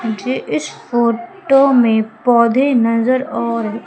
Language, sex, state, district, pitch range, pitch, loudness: Hindi, female, Madhya Pradesh, Umaria, 230-260 Hz, 235 Hz, -15 LUFS